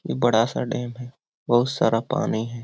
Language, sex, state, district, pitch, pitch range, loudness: Hindi, male, Bihar, Lakhisarai, 120 Hz, 115-125 Hz, -23 LUFS